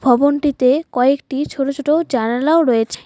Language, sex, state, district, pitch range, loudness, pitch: Bengali, female, West Bengal, Alipurduar, 250-290 Hz, -16 LUFS, 275 Hz